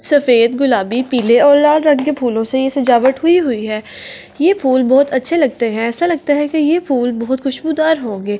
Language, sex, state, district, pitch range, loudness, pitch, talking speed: Hindi, female, Delhi, New Delhi, 240-300 Hz, -14 LUFS, 265 Hz, 205 wpm